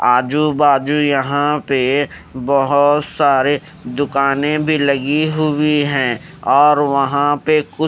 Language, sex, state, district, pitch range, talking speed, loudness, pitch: Hindi, male, Haryana, Rohtak, 140-150 Hz, 115 wpm, -15 LUFS, 145 Hz